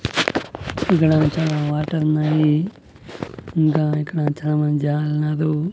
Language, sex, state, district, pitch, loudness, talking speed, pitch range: Telugu, male, Andhra Pradesh, Annamaya, 155 Hz, -20 LUFS, 95 wpm, 150-155 Hz